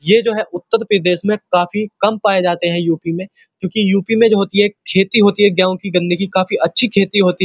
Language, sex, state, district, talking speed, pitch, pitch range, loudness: Hindi, male, Uttar Pradesh, Muzaffarnagar, 260 wpm, 195 Hz, 180-210 Hz, -15 LUFS